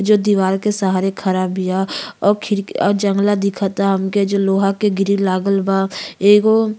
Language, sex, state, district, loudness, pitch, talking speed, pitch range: Bhojpuri, female, Uttar Pradesh, Gorakhpur, -17 LUFS, 195 Hz, 175 wpm, 195-205 Hz